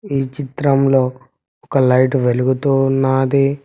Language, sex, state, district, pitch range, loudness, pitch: Telugu, male, Telangana, Mahabubabad, 130-140 Hz, -16 LUFS, 135 Hz